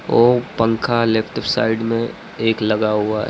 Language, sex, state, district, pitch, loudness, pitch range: Hindi, male, Uttar Pradesh, Lucknow, 115 Hz, -18 LUFS, 110-115 Hz